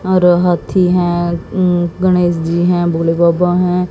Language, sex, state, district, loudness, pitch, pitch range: Hindi, female, Haryana, Jhajjar, -13 LUFS, 175 Hz, 170-180 Hz